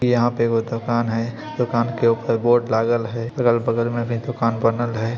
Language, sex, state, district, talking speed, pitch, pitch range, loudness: Maithili, male, Bihar, Samastipur, 195 wpm, 115 Hz, 115-120 Hz, -21 LUFS